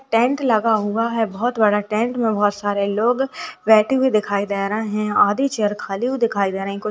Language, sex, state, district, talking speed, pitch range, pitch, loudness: Hindi, female, Uttar Pradesh, Ghazipur, 235 wpm, 205-235 Hz, 215 Hz, -19 LUFS